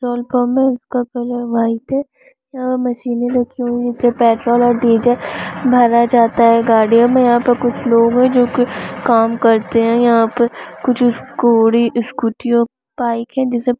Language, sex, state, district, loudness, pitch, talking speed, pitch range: Hindi, female, Chhattisgarh, Raigarh, -14 LUFS, 240 Hz, 165 wpm, 235-245 Hz